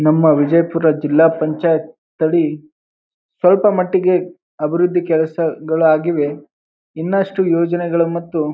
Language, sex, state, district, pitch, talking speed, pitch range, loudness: Kannada, male, Karnataka, Bijapur, 165 Hz, 90 wpm, 155-175 Hz, -16 LUFS